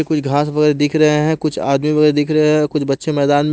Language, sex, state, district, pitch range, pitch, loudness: Hindi, male, Haryana, Jhajjar, 145-155 Hz, 150 Hz, -15 LUFS